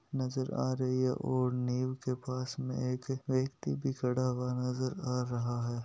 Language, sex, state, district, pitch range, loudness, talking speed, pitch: Hindi, male, Rajasthan, Nagaur, 125-130 Hz, -34 LUFS, 185 wpm, 130 Hz